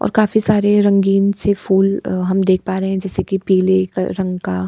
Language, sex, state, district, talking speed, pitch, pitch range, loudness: Hindi, female, Bihar, Kishanganj, 230 wpm, 190 Hz, 185-200 Hz, -16 LUFS